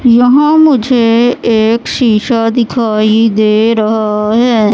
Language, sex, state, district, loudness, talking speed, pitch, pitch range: Hindi, female, Madhya Pradesh, Katni, -10 LUFS, 100 wpm, 230 Hz, 215-245 Hz